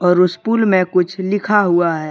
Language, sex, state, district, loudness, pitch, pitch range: Hindi, male, Jharkhand, Deoghar, -15 LUFS, 180 Hz, 175-205 Hz